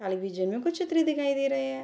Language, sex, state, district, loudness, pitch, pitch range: Hindi, female, Bihar, Sitamarhi, -28 LUFS, 215 Hz, 185-310 Hz